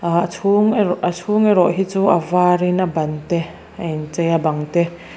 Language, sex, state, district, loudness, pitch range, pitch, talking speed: Mizo, female, Mizoram, Aizawl, -18 LUFS, 170-190 Hz, 175 Hz, 210 wpm